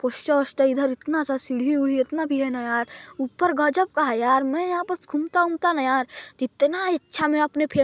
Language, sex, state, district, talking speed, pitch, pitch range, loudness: Hindi, male, Chhattisgarh, Balrampur, 200 wpm, 290 Hz, 265-315 Hz, -23 LUFS